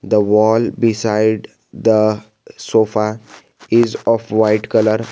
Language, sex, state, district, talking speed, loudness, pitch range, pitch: English, male, Jharkhand, Garhwa, 105 wpm, -15 LUFS, 105-115 Hz, 110 Hz